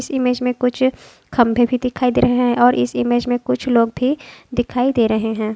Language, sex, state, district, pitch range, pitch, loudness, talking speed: Hindi, female, Maharashtra, Dhule, 230-250 Hz, 245 Hz, -18 LUFS, 225 wpm